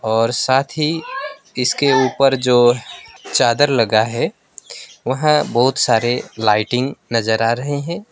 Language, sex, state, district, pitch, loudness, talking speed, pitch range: Hindi, male, West Bengal, Alipurduar, 125 Hz, -17 LUFS, 125 wpm, 115-140 Hz